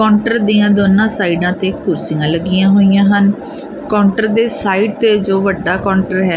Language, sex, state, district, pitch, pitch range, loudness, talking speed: Punjabi, female, Punjab, Kapurthala, 200 Hz, 190-215 Hz, -13 LUFS, 160 wpm